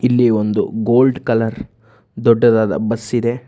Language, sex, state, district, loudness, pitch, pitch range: Kannada, male, Karnataka, Bangalore, -16 LUFS, 115 Hz, 110-120 Hz